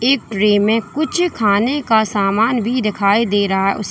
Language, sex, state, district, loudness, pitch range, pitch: Hindi, female, Uttar Pradesh, Lalitpur, -16 LUFS, 200-240 Hz, 220 Hz